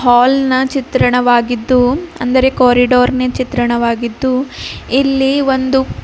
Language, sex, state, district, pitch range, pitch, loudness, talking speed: Kannada, female, Karnataka, Bidar, 245-265 Hz, 255 Hz, -13 LUFS, 70 wpm